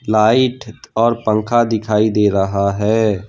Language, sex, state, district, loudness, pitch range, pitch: Hindi, male, Gujarat, Valsad, -16 LUFS, 105-115 Hz, 110 Hz